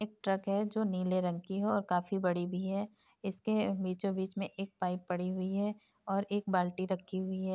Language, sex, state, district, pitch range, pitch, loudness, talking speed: Hindi, female, Uttar Pradesh, Etah, 185-200 Hz, 195 Hz, -35 LUFS, 230 wpm